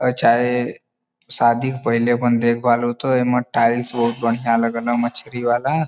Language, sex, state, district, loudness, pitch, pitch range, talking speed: Bhojpuri, male, Uttar Pradesh, Varanasi, -19 LUFS, 120 Hz, 120-125 Hz, 175 wpm